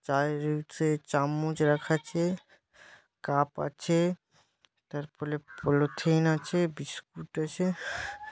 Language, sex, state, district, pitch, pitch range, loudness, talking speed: Bengali, male, West Bengal, Malda, 155 Hz, 145-170 Hz, -30 LUFS, 85 wpm